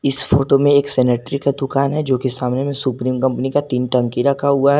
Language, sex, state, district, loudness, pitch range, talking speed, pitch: Hindi, male, Jharkhand, Garhwa, -17 LUFS, 130-140 Hz, 250 wpm, 135 Hz